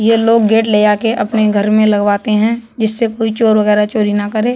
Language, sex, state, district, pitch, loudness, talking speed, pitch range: Hindi, male, Uttar Pradesh, Budaun, 220 Hz, -13 LUFS, 225 wpm, 210-225 Hz